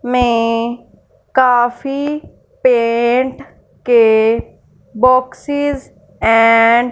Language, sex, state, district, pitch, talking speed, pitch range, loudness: Hindi, female, Punjab, Fazilka, 245 Hz, 60 wpm, 230-260 Hz, -14 LUFS